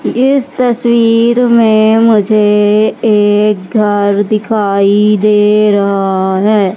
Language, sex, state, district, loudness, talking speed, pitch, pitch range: Hindi, male, Madhya Pradesh, Katni, -10 LUFS, 90 wpm, 210 Hz, 205-230 Hz